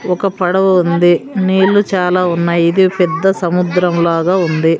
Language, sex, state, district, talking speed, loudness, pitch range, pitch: Telugu, female, Andhra Pradesh, Sri Satya Sai, 135 wpm, -13 LUFS, 170-190 Hz, 180 Hz